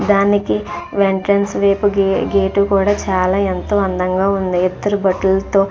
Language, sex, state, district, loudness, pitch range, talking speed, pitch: Telugu, female, Andhra Pradesh, Krishna, -16 LUFS, 190-200 Hz, 125 wpm, 195 Hz